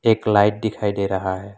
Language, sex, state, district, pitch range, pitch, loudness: Hindi, male, Assam, Kamrup Metropolitan, 100-105 Hz, 100 Hz, -20 LUFS